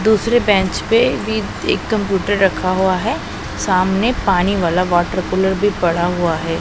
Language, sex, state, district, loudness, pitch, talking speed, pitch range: Hindi, female, Punjab, Pathankot, -16 LUFS, 190 Hz, 165 wpm, 175-210 Hz